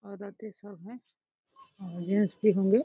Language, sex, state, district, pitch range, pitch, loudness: Hindi, female, Uttar Pradesh, Deoria, 200-220 Hz, 205 Hz, -28 LUFS